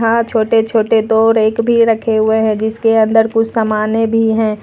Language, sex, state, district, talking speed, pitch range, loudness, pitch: Hindi, female, Jharkhand, Ranchi, 195 wpm, 220-225 Hz, -13 LUFS, 225 Hz